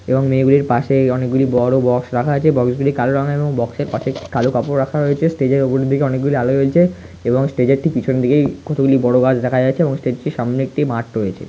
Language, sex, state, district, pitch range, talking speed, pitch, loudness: Bengali, male, West Bengal, North 24 Parganas, 125-140 Hz, 240 wpm, 130 Hz, -16 LUFS